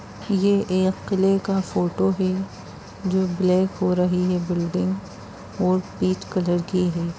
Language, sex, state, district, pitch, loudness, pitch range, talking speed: Hindi, female, Bihar, Jamui, 185 Hz, -22 LUFS, 180-190 Hz, 140 wpm